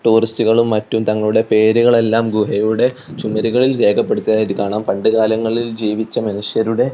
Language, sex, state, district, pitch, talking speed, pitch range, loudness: Malayalam, male, Kerala, Kozhikode, 110 Hz, 95 wpm, 110-115 Hz, -16 LUFS